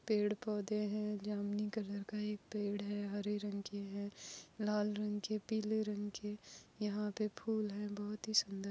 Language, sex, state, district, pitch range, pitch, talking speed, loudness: Hindi, female, Goa, North and South Goa, 205-210 Hz, 210 Hz, 180 wpm, -40 LUFS